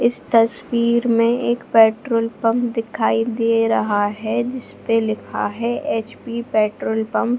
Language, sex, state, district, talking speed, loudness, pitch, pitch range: Hindi, female, Bihar, Jahanabad, 140 wpm, -19 LUFS, 230 Hz, 225-235 Hz